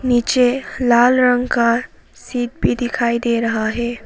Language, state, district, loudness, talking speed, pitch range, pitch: Hindi, Arunachal Pradesh, Papum Pare, -17 LUFS, 150 wpm, 235-250 Hz, 240 Hz